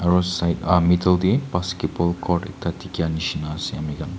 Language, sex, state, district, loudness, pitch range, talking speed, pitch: Nagamese, male, Nagaland, Kohima, -22 LUFS, 80-90 Hz, 170 wpm, 85 Hz